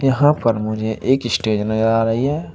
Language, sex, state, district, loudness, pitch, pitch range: Hindi, male, Uttar Pradesh, Saharanpur, -18 LUFS, 115 Hz, 110-135 Hz